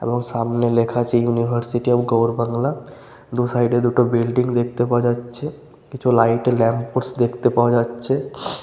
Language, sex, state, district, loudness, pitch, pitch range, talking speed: Bengali, male, West Bengal, Malda, -19 LUFS, 120 Hz, 120-125 Hz, 160 wpm